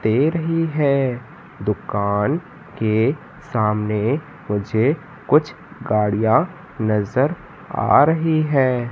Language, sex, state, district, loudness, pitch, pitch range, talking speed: Hindi, male, Madhya Pradesh, Katni, -20 LUFS, 135 Hz, 110-160 Hz, 85 wpm